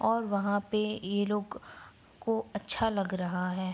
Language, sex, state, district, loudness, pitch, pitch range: Hindi, female, Bihar, Araria, -31 LUFS, 205 Hz, 190-220 Hz